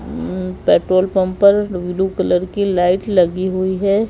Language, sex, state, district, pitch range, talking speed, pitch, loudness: Hindi, male, Madhya Pradesh, Bhopal, 185-195 Hz, 145 wpm, 185 Hz, -16 LUFS